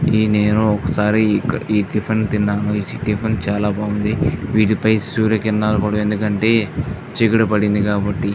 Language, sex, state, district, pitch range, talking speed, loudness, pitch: Telugu, male, Andhra Pradesh, Visakhapatnam, 105-110 Hz, 130 wpm, -18 LUFS, 105 Hz